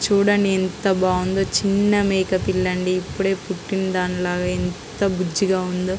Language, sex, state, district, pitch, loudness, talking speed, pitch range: Telugu, female, Andhra Pradesh, Guntur, 185 Hz, -21 LUFS, 120 wpm, 180-195 Hz